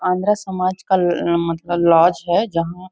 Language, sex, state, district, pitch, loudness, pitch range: Hindi, female, Chhattisgarh, Bastar, 175 Hz, -18 LUFS, 170-185 Hz